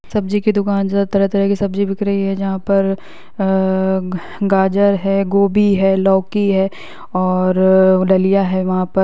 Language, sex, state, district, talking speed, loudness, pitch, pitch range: Hindi, female, Bihar, East Champaran, 165 wpm, -16 LUFS, 195 Hz, 190-200 Hz